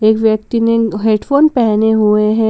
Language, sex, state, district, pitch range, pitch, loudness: Hindi, female, Jharkhand, Palamu, 215-230 Hz, 220 Hz, -13 LUFS